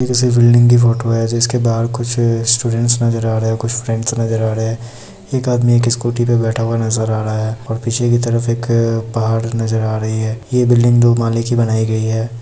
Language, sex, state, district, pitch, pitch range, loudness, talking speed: Hindi, male, Bihar, Muzaffarpur, 115 Hz, 115-120 Hz, -15 LUFS, 235 wpm